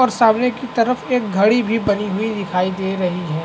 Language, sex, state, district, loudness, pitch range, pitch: Hindi, male, Chhattisgarh, Bastar, -18 LUFS, 190-240 Hz, 215 Hz